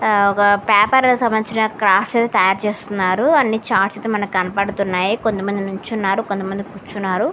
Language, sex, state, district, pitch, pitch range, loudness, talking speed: Telugu, female, Andhra Pradesh, Srikakulam, 205 Hz, 195-220 Hz, -17 LUFS, 140 wpm